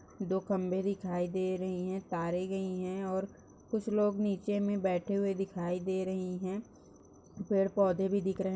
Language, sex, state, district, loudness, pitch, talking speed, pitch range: Hindi, female, Chhattisgarh, Rajnandgaon, -34 LUFS, 190 Hz, 180 wpm, 185-200 Hz